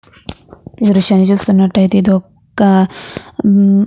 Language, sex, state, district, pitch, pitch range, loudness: Telugu, female, Andhra Pradesh, Guntur, 195 Hz, 190-200 Hz, -12 LUFS